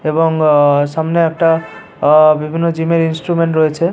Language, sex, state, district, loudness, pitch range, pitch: Bengali, male, West Bengal, Paschim Medinipur, -13 LUFS, 155-165 Hz, 160 Hz